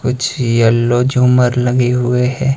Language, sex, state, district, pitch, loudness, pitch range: Hindi, male, Himachal Pradesh, Shimla, 125 Hz, -13 LUFS, 120-125 Hz